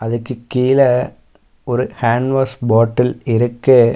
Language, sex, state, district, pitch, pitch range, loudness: Tamil, male, Tamil Nadu, Namakkal, 125 Hz, 115-130 Hz, -16 LUFS